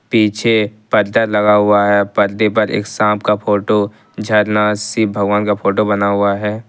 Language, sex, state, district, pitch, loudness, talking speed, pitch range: Hindi, male, Jharkhand, Ranchi, 105 Hz, -14 LUFS, 170 wpm, 100-105 Hz